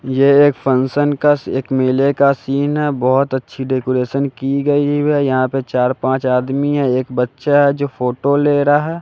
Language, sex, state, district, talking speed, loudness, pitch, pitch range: Hindi, male, Bihar, West Champaran, 185 wpm, -16 LUFS, 135 Hz, 130-145 Hz